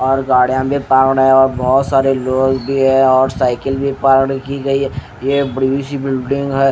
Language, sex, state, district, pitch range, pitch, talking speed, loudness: Hindi, male, Haryana, Rohtak, 130-135 Hz, 135 Hz, 205 wpm, -14 LUFS